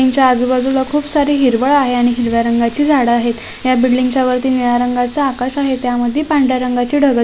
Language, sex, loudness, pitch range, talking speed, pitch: Marathi, female, -14 LUFS, 245-275 Hz, 215 wpm, 255 Hz